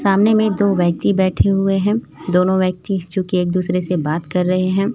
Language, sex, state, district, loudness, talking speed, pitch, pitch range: Hindi, female, Chhattisgarh, Raipur, -17 LUFS, 205 wpm, 185 Hz, 180-195 Hz